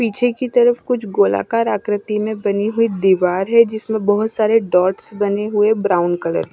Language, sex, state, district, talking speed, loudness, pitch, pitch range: Hindi, female, Odisha, Nuapada, 185 wpm, -17 LUFS, 210 Hz, 200-225 Hz